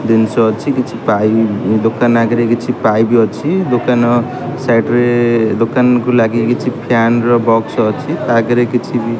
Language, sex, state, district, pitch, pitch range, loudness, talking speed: Odia, male, Odisha, Khordha, 120 Hz, 115-125 Hz, -13 LUFS, 155 wpm